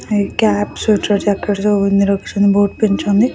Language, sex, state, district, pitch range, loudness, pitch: Odia, female, Odisha, Khordha, 200-210 Hz, -15 LUFS, 205 Hz